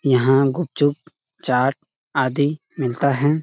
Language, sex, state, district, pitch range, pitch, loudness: Hindi, male, Chhattisgarh, Sarguja, 130-150 Hz, 140 Hz, -20 LUFS